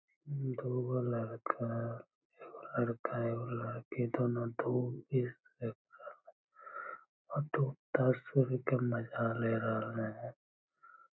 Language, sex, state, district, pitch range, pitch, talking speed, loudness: Magahi, male, Bihar, Lakhisarai, 115-140 Hz, 125 Hz, 75 wpm, -37 LUFS